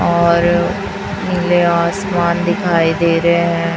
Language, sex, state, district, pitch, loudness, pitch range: Hindi, female, Chhattisgarh, Raipur, 170 Hz, -15 LUFS, 170-175 Hz